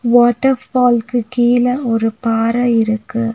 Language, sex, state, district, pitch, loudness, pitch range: Tamil, female, Tamil Nadu, Nilgiris, 240 Hz, -15 LUFS, 225-245 Hz